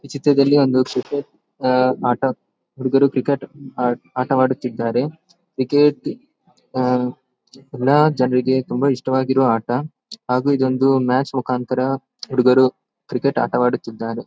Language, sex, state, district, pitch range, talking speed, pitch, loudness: Kannada, male, Karnataka, Dakshina Kannada, 125-140 Hz, 100 wpm, 130 Hz, -19 LUFS